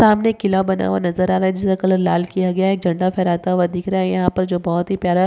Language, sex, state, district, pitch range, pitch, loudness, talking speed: Hindi, female, Rajasthan, Nagaur, 180-190 Hz, 185 Hz, -18 LUFS, 320 wpm